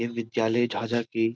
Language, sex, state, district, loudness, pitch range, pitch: Hindi, male, Bihar, Jamui, -27 LUFS, 115-120 Hz, 115 Hz